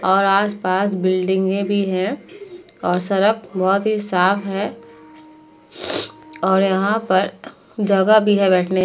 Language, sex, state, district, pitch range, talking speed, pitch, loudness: Hindi, female, Uttar Pradesh, Muzaffarnagar, 185-210 Hz, 130 wpm, 195 Hz, -18 LUFS